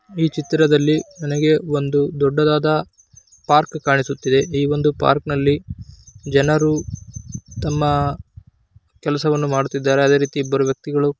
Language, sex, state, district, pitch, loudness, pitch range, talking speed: Kannada, male, Karnataka, Chamarajanagar, 145 Hz, -18 LUFS, 135-150 Hz, 115 wpm